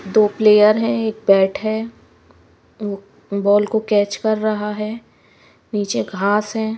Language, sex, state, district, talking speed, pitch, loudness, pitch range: Hindi, female, Himachal Pradesh, Shimla, 135 wpm, 210 Hz, -18 LUFS, 200-220 Hz